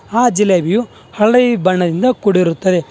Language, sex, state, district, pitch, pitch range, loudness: Kannada, male, Karnataka, Bangalore, 200 Hz, 180-235 Hz, -14 LUFS